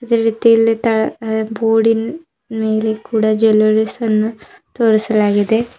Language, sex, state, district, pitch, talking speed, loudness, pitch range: Kannada, female, Karnataka, Bidar, 225 Hz, 115 wpm, -15 LUFS, 220-225 Hz